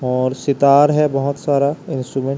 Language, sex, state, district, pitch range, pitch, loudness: Hindi, male, Chhattisgarh, Raipur, 135-140 Hz, 140 Hz, -16 LUFS